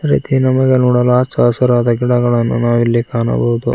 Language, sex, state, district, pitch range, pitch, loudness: Kannada, male, Karnataka, Koppal, 120-125 Hz, 120 Hz, -13 LUFS